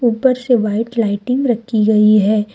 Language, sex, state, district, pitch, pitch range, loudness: Hindi, female, Jharkhand, Deoghar, 220 Hz, 210-245 Hz, -15 LUFS